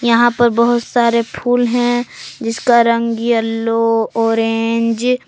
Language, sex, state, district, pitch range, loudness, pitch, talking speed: Hindi, female, Jharkhand, Palamu, 230-240 Hz, -15 LUFS, 235 Hz, 125 wpm